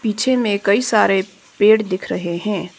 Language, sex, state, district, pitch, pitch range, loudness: Hindi, female, Arunachal Pradesh, Papum Pare, 205 Hz, 195-220 Hz, -17 LUFS